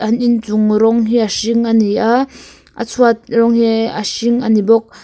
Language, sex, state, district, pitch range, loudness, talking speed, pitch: Mizo, female, Mizoram, Aizawl, 220-235 Hz, -14 LUFS, 190 wpm, 230 Hz